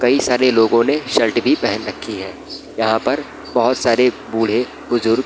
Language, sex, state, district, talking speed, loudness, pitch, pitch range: Hindi, male, Bihar, Araria, 170 wpm, -17 LUFS, 120 Hz, 115-125 Hz